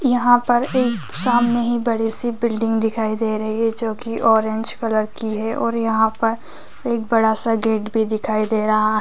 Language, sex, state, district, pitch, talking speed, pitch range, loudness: Hindi, female, Chhattisgarh, Raigarh, 225 Hz, 200 wpm, 220-235 Hz, -19 LUFS